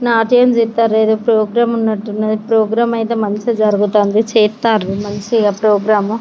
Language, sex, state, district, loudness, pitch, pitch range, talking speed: Telugu, female, Telangana, Karimnagar, -14 LUFS, 220 Hz, 210-230 Hz, 115 wpm